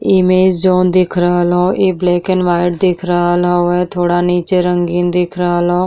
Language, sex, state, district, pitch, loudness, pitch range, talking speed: Bhojpuri, female, Uttar Pradesh, Deoria, 180 Hz, -13 LUFS, 175-185 Hz, 175 wpm